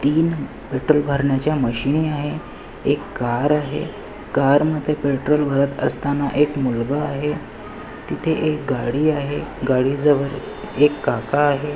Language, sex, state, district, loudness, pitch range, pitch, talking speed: Marathi, male, Maharashtra, Nagpur, -20 LUFS, 140-150 Hz, 145 Hz, 115 wpm